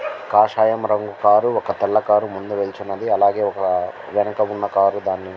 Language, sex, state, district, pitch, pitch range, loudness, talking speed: Telugu, male, Andhra Pradesh, Guntur, 105 Hz, 100-105 Hz, -19 LUFS, 170 wpm